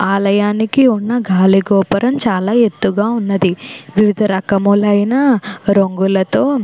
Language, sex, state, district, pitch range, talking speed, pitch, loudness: Telugu, female, Andhra Pradesh, Chittoor, 195-230 Hz, 100 wpm, 205 Hz, -14 LUFS